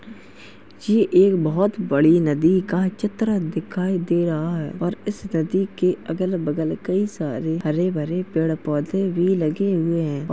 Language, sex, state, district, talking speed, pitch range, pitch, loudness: Hindi, male, Uttar Pradesh, Jalaun, 145 wpm, 160-190 Hz, 175 Hz, -21 LUFS